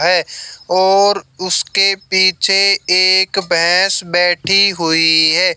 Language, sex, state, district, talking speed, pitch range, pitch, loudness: Hindi, male, Haryana, Jhajjar, 95 wpm, 175-195 Hz, 185 Hz, -12 LUFS